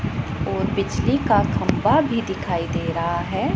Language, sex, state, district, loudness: Hindi, female, Punjab, Pathankot, -22 LUFS